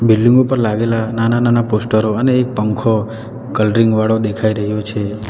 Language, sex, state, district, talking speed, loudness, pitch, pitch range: Gujarati, male, Gujarat, Valsad, 145 wpm, -15 LUFS, 110 Hz, 110-120 Hz